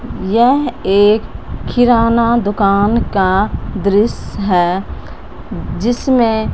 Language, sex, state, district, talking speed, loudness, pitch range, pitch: Hindi, female, Punjab, Fazilka, 75 wpm, -14 LUFS, 200-235 Hz, 215 Hz